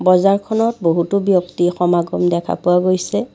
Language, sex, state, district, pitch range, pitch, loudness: Assamese, female, Assam, Kamrup Metropolitan, 175-195 Hz, 180 Hz, -16 LUFS